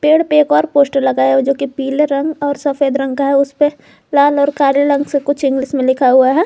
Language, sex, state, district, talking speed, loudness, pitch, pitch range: Hindi, female, Jharkhand, Garhwa, 270 wpm, -14 LUFS, 280 Hz, 275-290 Hz